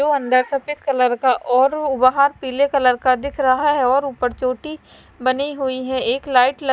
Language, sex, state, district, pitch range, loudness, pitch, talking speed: Hindi, male, Punjab, Fazilka, 255-280 Hz, -18 LUFS, 260 Hz, 205 wpm